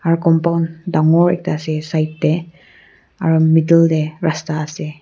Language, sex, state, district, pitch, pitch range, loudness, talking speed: Nagamese, female, Nagaland, Kohima, 160 Hz, 155-170 Hz, -16 LUFS, 145 wpm